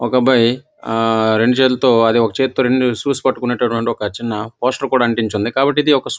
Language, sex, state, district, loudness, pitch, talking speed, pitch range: Telugu, male, Andhra Pradesh, Visakhapatnam, -16 LUFS, 120 Hz, 215 wpm, 115-130 Hz